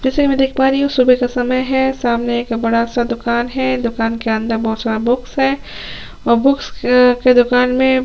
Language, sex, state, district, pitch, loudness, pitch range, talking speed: Hindi, female, Chhattisgarh, Sukma, 250 Hz, -15 LUFS, 235-265 Hz, 195 wpm